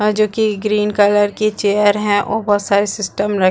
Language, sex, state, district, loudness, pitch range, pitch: Hindi, female, Chhattisgarh, Bastar, -16 LUFS, 205-210 Hz, 210 Hz